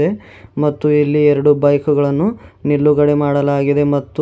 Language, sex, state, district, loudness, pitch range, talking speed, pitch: Kannada, male, Karnataka, Bidar, -15 LUFS, 145-150 Hz, 115 wpm, 145 Hz